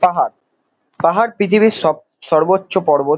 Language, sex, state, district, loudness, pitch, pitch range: Bengali, male, West Bengal, Kolkata, -15 LUFS, 190 Hz, 155-205 Hz